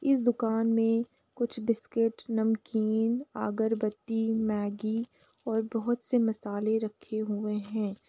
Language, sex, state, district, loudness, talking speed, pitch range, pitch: Hindi, female, Uttar Pradesh, Jalaun, -30 LUFS, 110 wpm, 215-230 Hz, 225 Hz